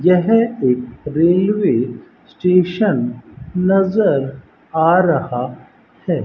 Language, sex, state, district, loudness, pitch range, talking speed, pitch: Hindi, male, Rajasthan, Bikaner, -16 LUFS, 130-190 Hz, 75 wpm, 175 Hz